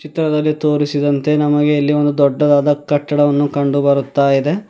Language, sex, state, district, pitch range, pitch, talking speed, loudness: Kannada, male, Karnataka, Bidar, 145-150 Hz, 145 Hz, 130 wpm, -15 LUFS